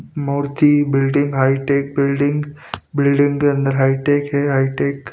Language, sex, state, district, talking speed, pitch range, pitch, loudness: Hindi, male, Punjab, Pathankot, 130 wpm, 135-145 Hz, 140 Hz, -17 LUFS